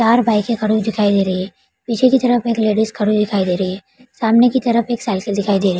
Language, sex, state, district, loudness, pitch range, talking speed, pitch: Hindi, female, Bihar, Araria, -16 LUFS, 200-235 Hz, 290 wpm, 220 Hz